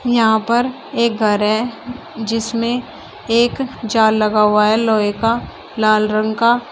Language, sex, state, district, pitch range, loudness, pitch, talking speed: Hindi, female, Uttar Pradesh, Shamli, 215-235 Hz, -16 LUFS, 225 Hz, 145 wpm